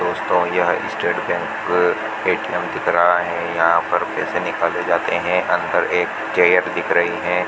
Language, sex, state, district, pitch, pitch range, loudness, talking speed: Hindi, male, Rajasthan, Bikaner, 90 Hz, 85-90 Hz, -18 LUFS, 160 wpm